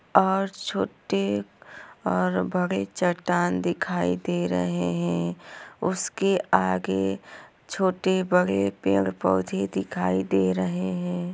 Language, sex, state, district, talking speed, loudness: Hindi, female, Bihar, Araria, 90 wpm, -25 LUFS